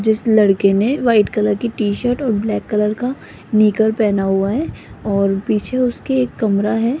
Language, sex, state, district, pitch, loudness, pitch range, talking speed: Hindi, female, Rajasthan, Jaipur, 215 Hz, -17 LUFS, 205-235 Hz, 190 wpm